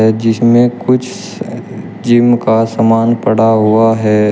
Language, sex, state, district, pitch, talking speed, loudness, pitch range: Hindi, male, Uttar Pradesh, Shamli, 115 Hz, 110 wpm, -11 LUFS, 110-120 Hz